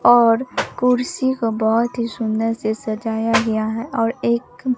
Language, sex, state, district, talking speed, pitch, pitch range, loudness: Hindi, male, Bihar, Katihar, 150 wpm, 230 Hz, 225-245 Hz, -19 LUFS